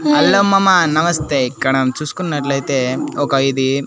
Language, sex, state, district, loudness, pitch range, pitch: Telugu, male, Andhra Pradesh, Annamaya, -15 LUFS, 135-175 Hz, 145 Hz